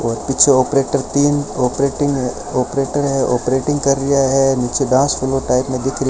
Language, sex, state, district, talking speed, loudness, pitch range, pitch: Hindi, male, Rajasthan, Bikaner, 175 wpm, -16 LUFS, 130-140 Hz, 135 Hz